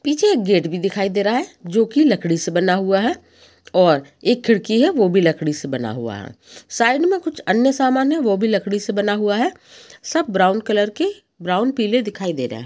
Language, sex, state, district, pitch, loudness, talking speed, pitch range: Hindi, female, Maharashtra, Pune, 205 Hz, -18 LUFS, 230 wpm, 180-250 Hz